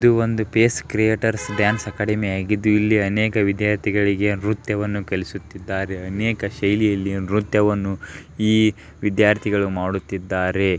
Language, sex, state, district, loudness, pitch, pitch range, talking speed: Kannada, male, Karnataka, Belgaum, -20 LUFS, 105 Hz, 95-105 Hz, 145 wpm